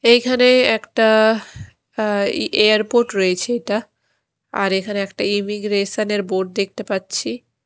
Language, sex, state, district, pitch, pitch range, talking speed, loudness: Bengali, female, Odisha, Khordha, 210 Hz, 195-225 Hz, 110 wpm, -18 LUFS